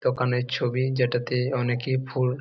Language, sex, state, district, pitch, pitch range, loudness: Bengali, male, West Bengal, Jalpaiguri, 125 Hz, 125-130 Hz, -25 LUFS